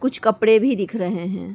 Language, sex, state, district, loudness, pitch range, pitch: Hindi, female, Uttar Pradesh, Ghazipur, -19 LUFS, 195-225 Hz, 220 Hz